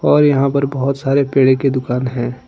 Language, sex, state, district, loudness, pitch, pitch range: Hindi, male, Jharkhand, Deoghar, -15 LUFS, 135 Hz, 130-140 Hz